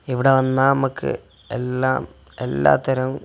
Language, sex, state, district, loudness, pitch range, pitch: Malayalam, male, Kerala, Kasaragod, -20 LUFS, 125-135 Hz, 130 Hz